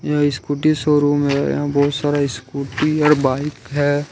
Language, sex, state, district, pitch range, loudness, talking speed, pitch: Hindi, male, Jharkhand, Ranchi, 140-150 Hz, -18 LUFS, 160 wpm, 145 Hz